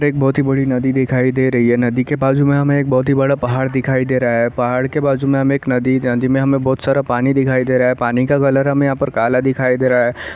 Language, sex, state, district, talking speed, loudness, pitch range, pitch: Hindi, male, Chhattisgarh, Sarguja, 295 wpm, -15 LUFS, 125-135 Hz, 130 Hz